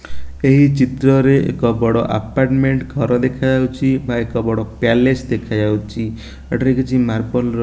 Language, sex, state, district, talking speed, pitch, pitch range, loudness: Odia, male, Odisha, Nuapada, 135 wpm, 125 Hz, 115-130 Hz, -16 LUFS